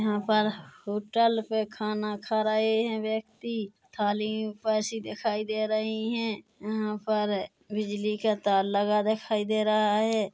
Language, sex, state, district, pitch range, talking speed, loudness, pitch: Hindi, female, Chhattisgarh, Korba, 210-220 Hz, 145 wpm, -28 LUFS, 215 Hz